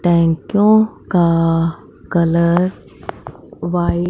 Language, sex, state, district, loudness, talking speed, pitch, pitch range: Hindi, female, Punjab, Fazilka, -16 LUFS, 75 wpm, 170 Hz, 165-180 Hz